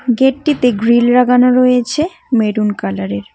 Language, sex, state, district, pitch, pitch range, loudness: Bengali, female, West Bengal, Cooch Behar, 245 Hz, 215-255 Hz, -13 LUFS